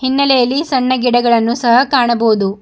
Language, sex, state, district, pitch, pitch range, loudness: Kannada, female, Karnataka, Bidar, 245 Hz, 235-260 Hz, -13 LUFS